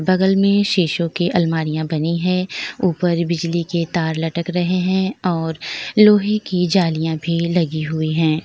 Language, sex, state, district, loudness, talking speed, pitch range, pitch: Hindi, female, Uttar Pradesh, Lalitpur, -18 LUFS, 155 wpm, 160-185 Hz, 170 Hz